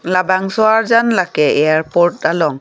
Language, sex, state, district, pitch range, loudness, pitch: Karbi, female, Assam, Karbi Anglong, 160-220 Hz, -14 LUFS, 185 Hz